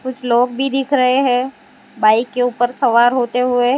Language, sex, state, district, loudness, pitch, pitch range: Hindi, female, Gujarat, Valsad, -15 LUFS, 250 Hz, 245-265 Hz